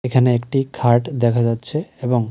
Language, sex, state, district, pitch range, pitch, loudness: Bengali, male, Tripura, West Tripura, 120-130 Hz, 125 Hz, -19 LUFS